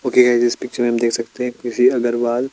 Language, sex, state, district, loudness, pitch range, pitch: Hindi, male, Chandigarh, Chandigarh, -18 LUFS, 120-125 Hz, 120 Hz